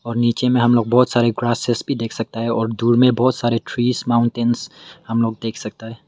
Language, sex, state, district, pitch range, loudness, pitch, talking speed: Hindi, male, Meghalaya, West Garo Hills, 115-120 Hz, -18 LUFS, 120 Hz, 235 wpm